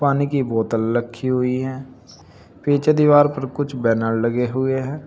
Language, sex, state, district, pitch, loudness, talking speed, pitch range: Hindi, male, Uttar Pradesh, Saharanpur, 130 Hz, -19 LUFS, 165 wpm, 115-140 Hz